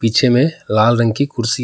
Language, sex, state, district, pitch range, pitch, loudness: Hindi, male, Jharkhand, Palamu, 115-135 Hz, 120 Hz, -15 LUFS